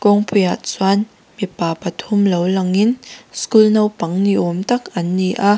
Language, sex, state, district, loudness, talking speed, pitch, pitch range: Mizo, female, Mizoram, Aizawl, -17 LUFS, 150 wpm, 200 Hz, 185-215 Hz